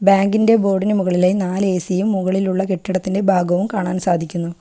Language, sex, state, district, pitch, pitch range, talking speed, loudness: Malayalam, female, Kerala, Kollam, 190 Hz, 180-195 Hz, 145 wpm, -18 LUFS